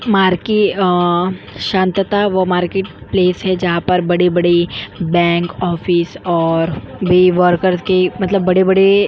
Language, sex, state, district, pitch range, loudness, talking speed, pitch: Hindi, female, Goa, North and South Goa, 175-190 Hz, -15 LUFS, 130 wpm, 180 Hz